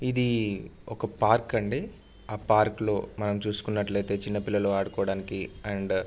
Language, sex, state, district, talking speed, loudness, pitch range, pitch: Telugu, male, Andhra Pradesh, Anantapur, 150 wpm, -28 LUFS, 100-105 Hz, 105 Hz